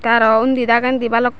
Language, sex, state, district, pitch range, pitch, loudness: Chakma, female, Tripura, Dhalai, 230-245 Hz, 235 Hz, -15 LUFS